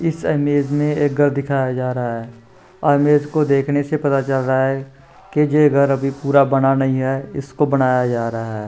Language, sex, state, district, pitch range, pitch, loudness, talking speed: Hindi, male, Maharashtra, Chandrapur, 130-145 Hz, 140 Hz, -18 LUFS, 215 wpm